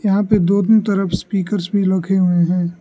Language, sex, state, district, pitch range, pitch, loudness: Hindi, male, Arunachal Pradesh, Lower Dibang Valley, 180-205 Hz, 195 Hz, -16 LUFS